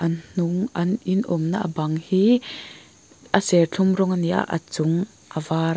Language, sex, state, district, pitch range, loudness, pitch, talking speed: Mizo, female, Mizoram, Aizawl, 165-190 Hz, -22 LUFS, 175 Hz, 195 wpm